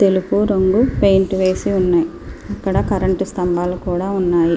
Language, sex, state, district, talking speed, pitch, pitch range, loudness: Telugu, female, Andhra Pradesh, Srikakulam, 130 wpm, 185 Hz, 175-195 Hz, -17 LUFS